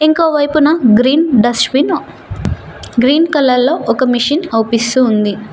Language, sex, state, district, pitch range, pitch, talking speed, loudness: Telugu, female, Telangana, Mahabubabad, 235-305 Hz, 255 Hz, 130 wpm, -12 LUFS